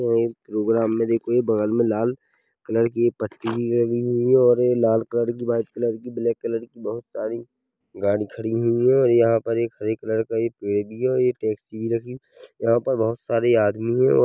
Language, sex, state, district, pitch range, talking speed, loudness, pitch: Hindi, male, Chhattisgarh, Korba, 115-120 Hz, 240 wpm, -22 LUFS, 115 Hz